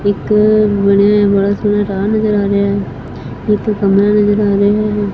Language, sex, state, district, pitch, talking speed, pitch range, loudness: Punjabi, female, Punjab, Fazilka, 205 Hz, 175 wpm, 200-210 Hz, -13 LUFS